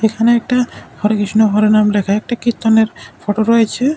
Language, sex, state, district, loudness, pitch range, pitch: Bengali, male, Tripura, West Tripura, -14 LUFS, 210-235 Hz, 220 Hz